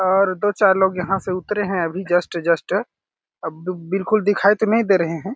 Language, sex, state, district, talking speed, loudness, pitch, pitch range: Hindi, male, Chhattisgarh, Balrampur, 245 wpm, -19 LUFS, 190 Hz, 175-205 Hz